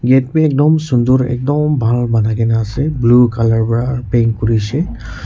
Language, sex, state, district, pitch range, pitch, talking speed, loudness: Nagamese, male, Nagaland, Kohima, 115-135 Hz, 120 Hz, 160 wpm, -14 LUFS